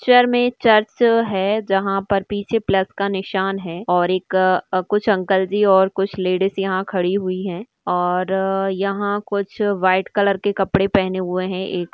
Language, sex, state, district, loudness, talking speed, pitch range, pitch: Hindi, female, Maharashtra, Nagpur, -19 LUFS, 170 wpm, 185-205 Hz, 195 Hz